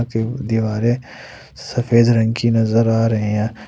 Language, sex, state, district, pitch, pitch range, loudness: Hindi, male, Jharkhand, Ranchi, 115 Hz, 110-120 Hz, -17 LUFS